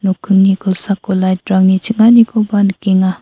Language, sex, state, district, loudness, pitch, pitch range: Garo, female, Meghalaya, South Garo Hills, -12 LUFS, 195 Hz, 190-210 Hz